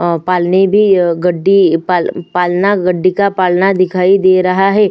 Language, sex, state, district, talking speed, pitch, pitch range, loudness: Hindi, female, Chhattisgarh, Sukma, 145 wpm, 185 Hz, 175-195 Hz, -11 LUFS